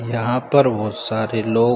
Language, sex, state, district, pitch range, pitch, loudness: Hindi, male, Chhattisgarh, Bilaspur, 110-125 Hz, 115 Hz, -19 LUFS